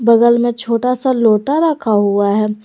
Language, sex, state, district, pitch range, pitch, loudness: Hindi, female, Jharkhand, Garhwa, 215-250 Hz, 230 Hz, -14 LUFS